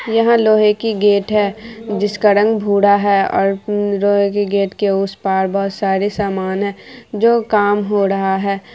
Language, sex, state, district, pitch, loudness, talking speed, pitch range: Hindi, female, Bihar, Araria, 205 Hz, -15 LUFS, 180 wpm, 195-210 Hz